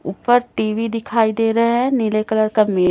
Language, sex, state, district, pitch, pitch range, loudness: Hindi, female, Chhattisgarh, Raipur, 225 Hz, 215-230 Hz, -18 LUFS